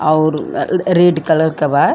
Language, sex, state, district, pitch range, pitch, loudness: Bhojpuri, female, Uttar Pradesh, Gorakhpur, 155-175 Hz, 160 Hz, -14 LUFS